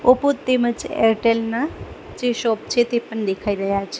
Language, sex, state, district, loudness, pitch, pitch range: Gujarati, female, Gujarat, Gandhinagar, -20 LUFS, 230 Hz, 220-245 Hz